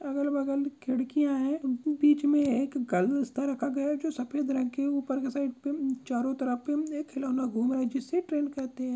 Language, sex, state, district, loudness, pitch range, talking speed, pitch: Hindi, male, Uttar Pradesh, Jyotiba Phule Nagar, -29 LUFS, 260-290 Hz, 215 wpm, 275 Hz